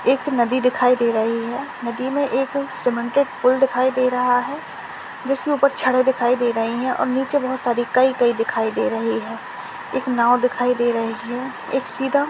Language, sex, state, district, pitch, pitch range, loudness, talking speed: Hindi, male, Maharashtra, Nagpur, 250 Hz, 240-265 Hz, -20 LUFS, 200 wpm